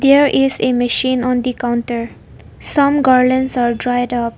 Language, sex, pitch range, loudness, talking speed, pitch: English, female, 240-260 Hz, -15 LUFS, 165 wpm, 250 Hz